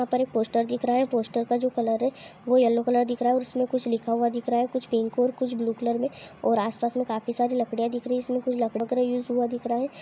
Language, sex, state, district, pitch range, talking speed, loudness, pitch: Hindi, female, Andhra Pradesh, Anantapur, 235-250 Hz, 310 wpm, -26 LUFS, 245 Hz